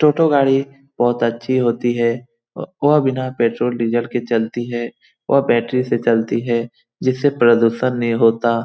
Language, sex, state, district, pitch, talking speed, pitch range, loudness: Hindi, male, Bihar, Lakhisarai, 120 Hz, 150 wpm, 115-130 Hz, -17 LUFS